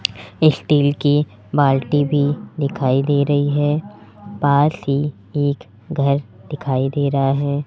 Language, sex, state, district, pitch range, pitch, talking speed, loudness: Hindi, male, Rajasthan, Jaipur, 130-145 Hz, 140 Hz, 125 wpm, -18 LUFS